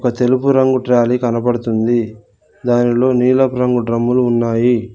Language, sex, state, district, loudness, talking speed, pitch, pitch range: Telugu, male, Telangana, Mahabubabad, -15 LUFS, 120 wpm, 120 Hz, 120-125 Hz